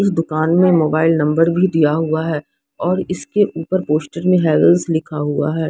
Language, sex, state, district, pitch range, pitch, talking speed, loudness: Hindi, female, Odisha, Sambalpur, 155-180 Hz, 165 Hz, 190 wpm, -16 LUFS